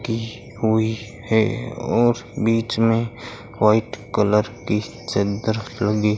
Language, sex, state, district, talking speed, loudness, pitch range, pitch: Hindi, male, Rajasthan, Bikaner, 115 wpm, -21 LUFS, 105-120 Hz, 115 Hz